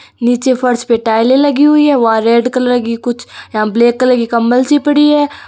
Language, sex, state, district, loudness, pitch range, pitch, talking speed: Hindi, female, Rajasthan, Churu, -11 LUFS, 235-280 Hz, 245 Hz, 220 wpm